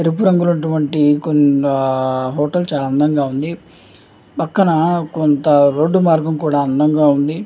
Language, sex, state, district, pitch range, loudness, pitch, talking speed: Telugu, male, Andhra Pradesh, Anantapur, 140-165 Hz, -15 LUFS, 150 Hz, 95 wpm